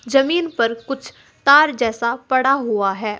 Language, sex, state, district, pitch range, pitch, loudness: Hindi, female, Uttar Pradesh, Saharanpur, 230-275 Hz, 255 Hz, -17 LUFS